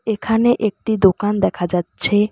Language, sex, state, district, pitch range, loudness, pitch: Bengali, female, West Bengal, Alipurduar, 195-220 Hz, -18 LUFS, 210 Hz